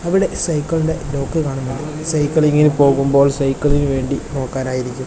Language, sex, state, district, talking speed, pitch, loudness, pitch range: Malayalam, male, Kerala, Kasaragod, 130 wpm, 145 Hz, -17 LUFS, 135-155 Hz